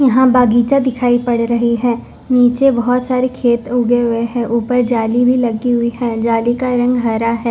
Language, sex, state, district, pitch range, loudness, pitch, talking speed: Hindi, female, Punjab, Fazilka, 235-250 Hz, -14 LUFS, 240 Hz, 190 wpm